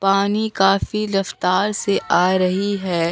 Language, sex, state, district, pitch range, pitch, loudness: Hindi, female, Bihar, Katihar, 185-205 Hz, 195 Hz, -19 LUFS